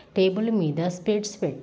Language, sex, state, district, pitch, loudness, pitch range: Telugu, female, Andhra Pradesh, Guntur, 190 Hz, -25 LUFS, 175-210 Hz